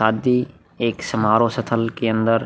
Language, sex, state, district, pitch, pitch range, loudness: Hindi, male, Bihar, Vaishali, 115 Hz, 110-120 Hz, -20 LUFS